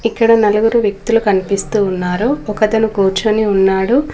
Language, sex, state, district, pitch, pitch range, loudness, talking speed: Telugu, female, Telangana, Komaram Bheem, 215 Hz, 195-225 Hz, -14 LUFS, 115 wpm